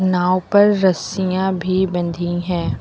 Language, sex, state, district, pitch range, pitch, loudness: Hindi, female, Uttar Pradesh, Lucknow, 175-190 Hz, 185 Hz, -18 LUFS